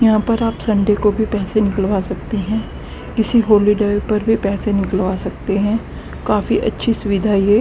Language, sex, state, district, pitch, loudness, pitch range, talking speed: Hindi, female, Haryana, Rohtak, 210 Hz, -17 LUFS, 200-220 Hz, 175 wpm